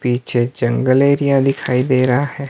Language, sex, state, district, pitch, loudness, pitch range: Hindi, male, Himachal Pradesh, Shimla, 130 Hz, -16 LUFS, 125-140 Hz